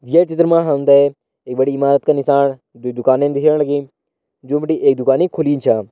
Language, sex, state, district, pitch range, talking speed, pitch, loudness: Hindi, male, Uttarakhand, Tehri Garhwal, 135-150 Hz, 200 wpm, 140 Hz, -15 LUFS